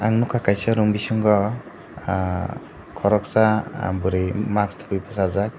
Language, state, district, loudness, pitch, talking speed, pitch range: Kokborok, Tripura, Dhalai, -22 LUFS, 105 Hz, 120 wpm, 95-110 Hz